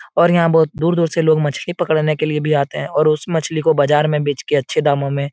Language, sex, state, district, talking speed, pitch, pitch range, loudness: Hindi, male, Bihar, Supaul, 280 wpm, 155 Hz, 145-160 Hz, -16 LUFS